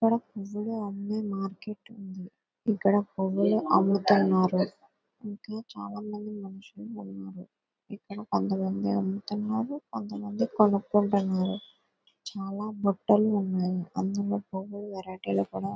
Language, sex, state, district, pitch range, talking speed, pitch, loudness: Telugu, female, Andhra Pradesh, Visakhapatnam, 190-210 Hz, 75 wpm, 200 Hz, -29 LUFS